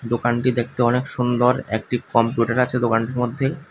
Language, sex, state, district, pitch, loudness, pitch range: Bengali, male, Tripura, West Tripura, 120 Hz, -21 LUFS, 115-125 Hz